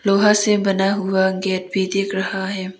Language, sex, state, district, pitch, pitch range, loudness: Hindi, female, Arunachal Pradesh, Papum Pare, 195 Hz, 190-195 Hz, -19 LUFS